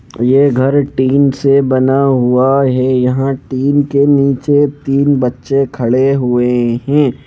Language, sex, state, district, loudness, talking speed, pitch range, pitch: Hindi, male, Jharkhand, Jamtara, -12 LUFS, 140 wpm, 130-140 Hz, 135 Hz